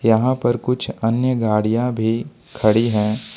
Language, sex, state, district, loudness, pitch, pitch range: Hindi, male, Jharkhand, Ranchi, -19 LUFS, 115 Hz, 110-125 Hz